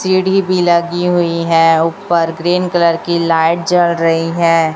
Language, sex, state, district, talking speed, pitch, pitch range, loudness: Hindi, female, Chhattisgarh, Raipur, 165 wpm, 170 Hz, 165-175 Hz, -13 LUFS